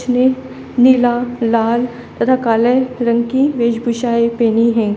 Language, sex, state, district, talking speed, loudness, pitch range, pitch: Hindi, female, Uttar Pradesh, Lalitpur, 135 wpm, -15 LUFS, 235-250 Hz, 240 Hz